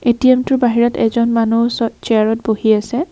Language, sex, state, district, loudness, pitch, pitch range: Assamese, female, Assam, Kamrup Metropolitan, -15 LUFS, 235 Hz, 225-245 Hz